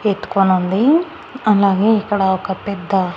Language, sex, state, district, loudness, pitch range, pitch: Telugu, female, Andhra Pradesh, Annamaya, -16 LUFS, 190-215 Hz, 200 Hz